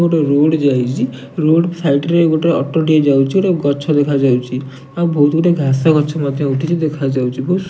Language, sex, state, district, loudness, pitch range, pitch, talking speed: Odia, male, Odisha, Nuapada, -15 LUFS, 135-165 Hz, 145 Hz, 140 wpm